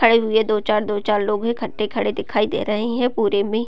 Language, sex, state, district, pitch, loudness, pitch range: Hindi, female, Bihar, Gopalganj, 215 Hz, -20 LUFS, 210-230 Hz